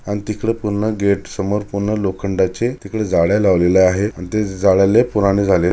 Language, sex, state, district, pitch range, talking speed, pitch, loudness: Marathi, male, Maharashtra, Chandrapur, 95-105 Hz, 180 wpm, 100 Hz, -17 LUFS